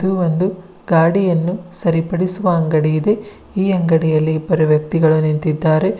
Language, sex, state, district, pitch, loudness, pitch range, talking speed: Kannada, female, Karnataka, Bidar, 170 Hz, -16 LUFS, 160-185 Hz, 110 wpm